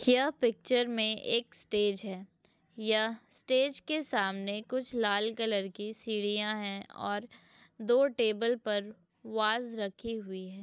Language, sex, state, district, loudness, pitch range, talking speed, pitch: Hindi, female, Uttar Pradesh, Hamirpur, -32 LUFS, 205-240 Hz, 135 wpm, 220 Hz